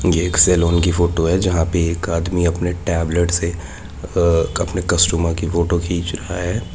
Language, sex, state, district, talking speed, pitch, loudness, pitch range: Hindi, male, Jharkhand, Jamtara, 180 wpm, 85 Hz, -18 LUFS, 85-90 Hz